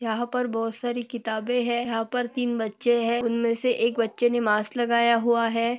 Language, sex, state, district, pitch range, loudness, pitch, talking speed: Hindi, female, Maharashtra, Dhule, 230-240 Hz, -25 LUFS, 235 Hz, 220 wpm